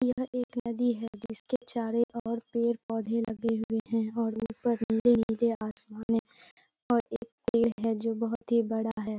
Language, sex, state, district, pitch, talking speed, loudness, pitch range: Hindi, female, Bihar, Purnia, 230 Hz, 170 wpm, -30 LUFS, 225-235 Hz